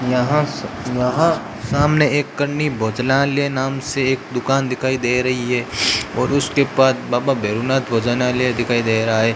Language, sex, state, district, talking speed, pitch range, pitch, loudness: Hindi, male, Rajasthan, Bikaner, 160 wpm, 120-140 Hz, 130 Hz, -18 LUFS